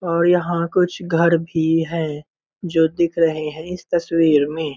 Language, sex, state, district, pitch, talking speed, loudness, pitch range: Hindi, male, Bihar, Muzaffarpur, 165 Hz, 165 wpm, -19 LUFS, 160-170 Hz